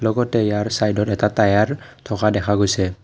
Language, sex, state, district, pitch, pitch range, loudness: Assamese, male, Assam, Kamrup Metropolitan, 105 Hz, 100-110 Hz, -19 LUFS